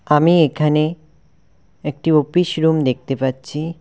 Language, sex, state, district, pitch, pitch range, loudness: Bengali, male, West Bengal, Cooch Behar, 155 Hz, 145-165 Hz, -17 LUFS